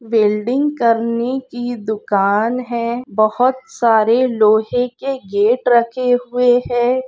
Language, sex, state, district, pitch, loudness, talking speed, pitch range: Hindi, female, Bihar, Purnia, 240 Hz, -16 LUFS, 110 wpm, 220-250 Hz